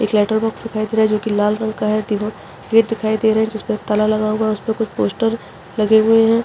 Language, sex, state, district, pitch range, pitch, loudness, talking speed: Hindi, female, Chhattisgarh, Rajnandgaon, 215-220 Hz, 215 Hz, -17 LUFS, 270 wpm